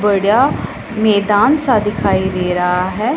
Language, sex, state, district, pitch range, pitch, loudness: Hindi, female, Punjab, Pathankot, 190-215 Hz, 205 Hz, -15 LUFS